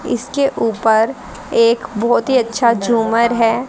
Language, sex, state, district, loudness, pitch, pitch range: Hindi, female, Haryana, Charkhi Dadri, -15 LUFS, 235 Hz, 225-245 Hz